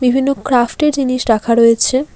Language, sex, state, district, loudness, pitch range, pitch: Bengali, female, West Bengal, Alipurduar, -14 LUFS, 235-270 Hz, 255 Hz